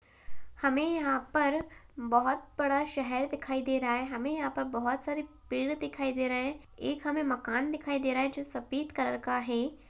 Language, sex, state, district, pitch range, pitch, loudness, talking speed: Hindi, female, Uttar Pradesh, Hamirpur, 255-290 Hz, 275 Hz, -32 LUFS, 205 wpm